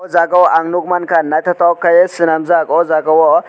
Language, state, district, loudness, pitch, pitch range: Kokborok, Tripura, West Tripura, -12 LUFS, 170 Hz, 160-175 Hz